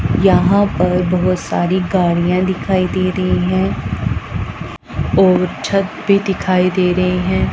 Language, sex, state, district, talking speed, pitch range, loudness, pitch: Hindi, female, Punjab, Pathankot, 125 wpm, 180-190 Hz, -16 LUFS, 185 Hz